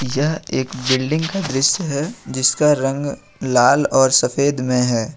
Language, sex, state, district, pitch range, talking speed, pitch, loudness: Hindi, male, Jharkhand, Ranchi, 130-150 Hz, 150 wpm, 135 Hz, -17 LUFS